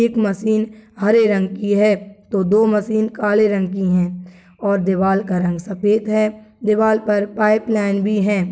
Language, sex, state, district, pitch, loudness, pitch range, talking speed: Angika, female, Bihar, Madhepura, 205 Hz, -18 LUFS, 195-215 Hz, 175 wpm